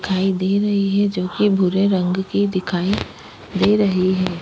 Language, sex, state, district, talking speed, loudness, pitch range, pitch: Hindi, female, Goa, North and South Goa, 190 wpm, -19 LUFS, 185-200 Hz, 190 Hz